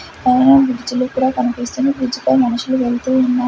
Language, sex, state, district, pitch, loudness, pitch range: Telugu, female, Andhra Pradesh, Sri Satya Sai, 255 Hz, -16 LUFS, 250-260 Hz